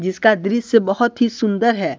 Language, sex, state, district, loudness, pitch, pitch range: Hindi, male, Jharkhand, Deoghar, -17 LUFS, 225 Hz, 205-235 Hz